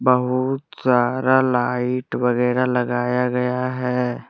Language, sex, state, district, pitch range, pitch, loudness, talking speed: Hindi, male, Jharkhand, Deoghar, 125-130 Hz, 125 Hz, -20 LUFS, 100 wpm